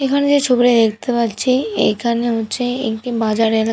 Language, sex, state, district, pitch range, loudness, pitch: Bengali, female, West Bengal, Purulia, 225-250 Hz, -17 LUFS, 235 Hz